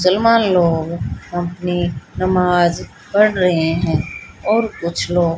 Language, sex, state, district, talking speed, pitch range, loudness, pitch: Hindi, female, Haryana, Rohtak, 125 wpm, 170-185 Hz, -17 LUFS, 175 Hz